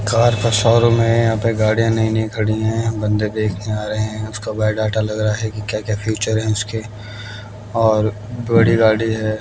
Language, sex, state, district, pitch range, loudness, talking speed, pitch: Hindi, male, Haryana, Jhajjar, 105-115 Hz, -18 LUFS, 190 wpm, 110 Hz